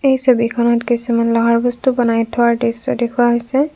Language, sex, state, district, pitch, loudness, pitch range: Assamese, female, Assam, Kamrup Metropolitan, 235 Hz, -15 LUFS, 235-245 Hz